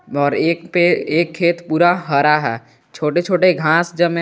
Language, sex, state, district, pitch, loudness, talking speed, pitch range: Hindi, male, Jharkhand, Garhwa, 170 Hz, -16 LUFS, 185 wpm, 150-175 Hz